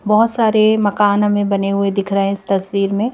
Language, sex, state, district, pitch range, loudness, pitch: Hindi, female, Madhya Pradesh, Bhopal, 200-215 Hz, -16 LUFS, 205 Hz